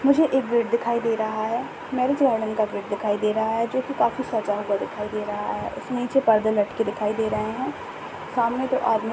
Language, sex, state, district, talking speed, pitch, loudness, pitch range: Hindi, male, Maharashtra, Nagpur, 225 wpm, 225 Hz, -24 LUFS, 210-245 Hz